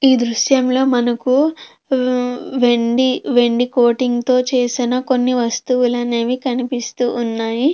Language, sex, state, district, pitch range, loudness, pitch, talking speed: Telugu, female, Andhra Pradesh, Krishna, 240-255 Hz, -16 LUFS, 250 Hz, 100 wpm